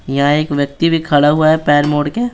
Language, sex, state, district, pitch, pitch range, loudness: Hindi, male, Bihar, Patna, 150 Hz, 145-160 Hz, -13 LUFS